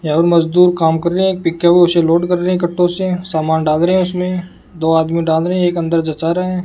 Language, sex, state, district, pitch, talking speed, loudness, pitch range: Hindi, male, Rajasthan, Bikaner, 175 Hz, 260 wpm, -14 LUFS, 165-180 Hz